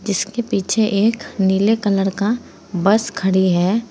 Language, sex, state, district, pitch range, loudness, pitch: Hindi, female, Uttar Pradesh, Saharanpur, 190-220 Hz, -18 LUFS, 205 Hz